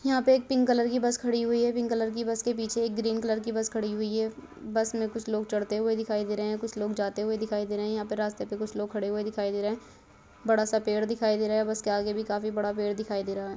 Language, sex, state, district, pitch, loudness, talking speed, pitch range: Hindi, female, Uttar Pradesh, Varanasi, 220 Hz, -29 LUFS, 320 wpm, 210-230 Hz